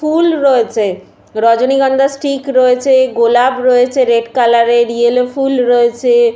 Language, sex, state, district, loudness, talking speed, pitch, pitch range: Bengali, female, West Bengal, Paschim Medinipur, -12 LUFS, 125 wpm, 250 Hz, 235-270 Hz